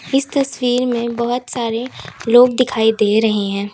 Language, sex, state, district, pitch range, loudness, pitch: Hindi, female, Uttar Pradesh, Lalitpur, 220-250 Hz, -16 LUFS, 235 Hz